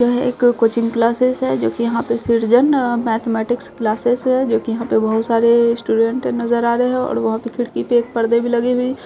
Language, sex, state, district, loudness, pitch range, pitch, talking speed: Hindi, female, Bihar, Saharsa, -17 LUFS, 230-245 Hz, 235 Hz, 230 wpm